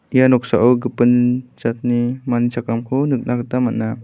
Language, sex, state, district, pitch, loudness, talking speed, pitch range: Garo, male, Meghalaya, West Garo Hills, 125 Hz, -18 LUFS, 120 wpm, 120-125 Hz